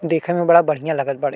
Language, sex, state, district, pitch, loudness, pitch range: Bhojpuri, male, Uttar Pradesh, Deoria, 160 Hz, -17 LUFS, 145-170 Hz